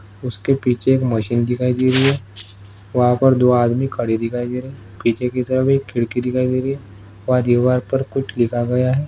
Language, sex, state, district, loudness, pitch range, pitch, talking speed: Hindi, male, Maharashtra, Solapur, -18 LUFS, 115-130 Hz, 125 Hz, 220 wpm